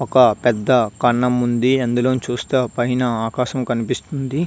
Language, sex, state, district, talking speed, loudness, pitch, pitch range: Telugu, male, Andhra Pradesh, Visakhapatnam, 135 wpm, -18 LUFS, 125 Hz, 120-130 Hz